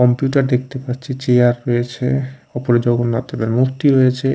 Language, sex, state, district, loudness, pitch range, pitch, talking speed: Bengali, male, Odisha, Khordha, -17 LUFS, 120-135 Hz, 125 Hz, 125 wpm